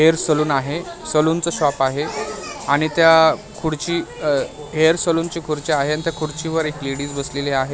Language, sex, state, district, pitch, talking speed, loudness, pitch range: Marathi, male, Maharashtra, Mumbai Suburban, 155 Hz, 160 wpm, -19 LUFS, 145-165 Hz